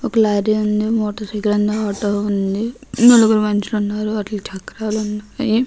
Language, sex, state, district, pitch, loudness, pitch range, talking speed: Telugu, female, Andhra Pradesh, Guntur, 210 Hz, -18 LUFS, 210-220 Hz, 150 wpm